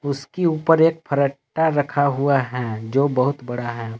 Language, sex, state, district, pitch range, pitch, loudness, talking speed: Hindi, male, Jharkhand, Palamu, 125-150 Hz, 140 Hz, -20 LUFS, 165 wpm